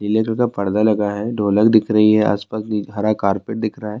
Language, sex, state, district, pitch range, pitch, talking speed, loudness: Urdu, male, Bihar, Saharsa, 105-110 Hz, 105 Hz, 240 wpm, -18 LUFS